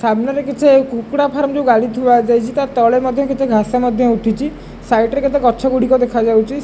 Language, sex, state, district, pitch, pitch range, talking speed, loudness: Odia, male, Odisha, Khordha, 250 Hz, 235-275 Hz, 180 wpm, -14 LUFS